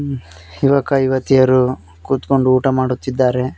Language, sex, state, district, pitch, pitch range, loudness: Kannada, male, Karnataka, Koppal, 130 Hz, 125-135 Hz, -16 LUFS